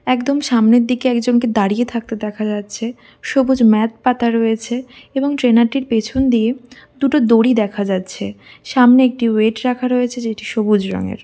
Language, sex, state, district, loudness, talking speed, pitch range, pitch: Bengali, female, West Bengal, Dakshin Dinajpur, -16 LUFS, 155 wpm, 220-250 Hz, 235 Hz